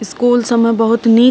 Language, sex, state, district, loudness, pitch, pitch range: Maithili, female, Bihar, Purnia, -12 LUFS, 235 Hz, 230-245 Hz